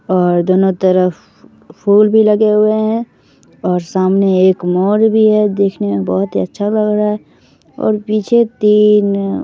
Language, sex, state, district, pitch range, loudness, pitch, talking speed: Hindi, female, Bihar, Begusarai, 185-215 Hz, -13 LUFS, 205 Hz, 160 wpm